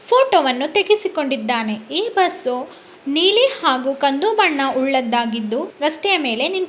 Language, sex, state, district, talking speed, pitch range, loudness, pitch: Kannada, male, Karnataka, Bellary, 90 wpm, 260-380 Hz, -17 LUFS, 290 Hz